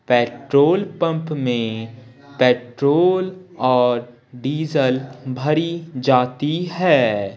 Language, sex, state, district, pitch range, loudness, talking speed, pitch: Hindi, male, Bihar, Patna, 125-160 Hz, -19 LUFS, 75 wpm, 135 Hz